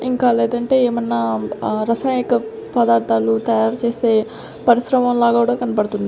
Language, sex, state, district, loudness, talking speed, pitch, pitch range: Telugu, female, Andhra Pradesh, Sri Satya Sai, -17 LUFS, 120 wpm, 235 Hz, 215-245 Hz